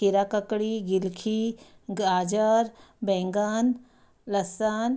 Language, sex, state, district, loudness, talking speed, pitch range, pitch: Hindi, female, Bihar, Darbhanga, -27 LUFS, 85 wpm, 200-225 Hz, 215 Hz